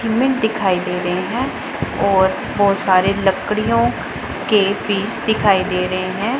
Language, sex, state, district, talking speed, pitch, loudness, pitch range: Hindi, female, Punjab, Pathankot, 140 wpm, 200 Hz, -18 LUFS, 185-225 Hz